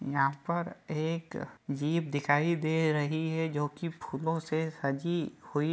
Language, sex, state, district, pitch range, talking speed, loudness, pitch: Hindi, male, Bihar, Jahanabad, 145-165 Hz, 155 wpm, -32 LUFS, 160 Hz